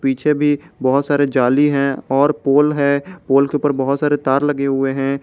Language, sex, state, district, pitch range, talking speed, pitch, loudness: Hindi, male, Jharkhand, Garhwa, 135-145 Hz, 230 wpm, 140 Hz, -16 LUFS